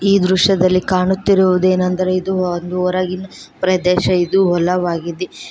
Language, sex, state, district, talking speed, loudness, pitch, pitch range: Kannada, female, Karnataka, Koppal, 85 wpm, -16 LUFS, 185 Hz, 180-185 Hz